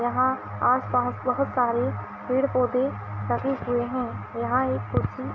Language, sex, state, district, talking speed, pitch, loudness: Hindi, female, Bihar, East Champaran, 155 wpm, 245 Hz, -26 LUFS